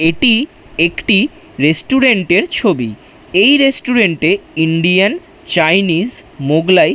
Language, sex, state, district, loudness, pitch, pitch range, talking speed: Bengali, male, West Bengal, Dakshin Dinajpur, -13 LUFS, 200 Hz, 165-275 Hz, 95 wpm